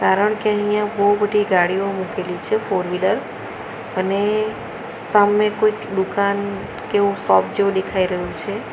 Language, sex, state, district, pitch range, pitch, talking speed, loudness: Gujarati, female, Gujarat, Valsad, 190-210 Hz, 200 Hz, 135 wpm, -19 LUFS